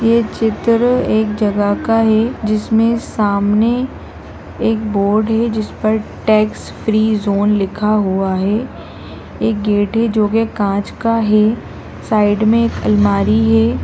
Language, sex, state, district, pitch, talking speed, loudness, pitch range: Hindi, female, Bihar, Madhepura, 215 Hz, 140 wpm, -15 LUFS, 205-225 Hz